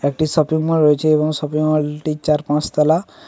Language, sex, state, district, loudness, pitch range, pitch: Bengali, male, West Bengal, Paschim Medinipur, -17 LUFS, 150-155 Hz, 155 Hz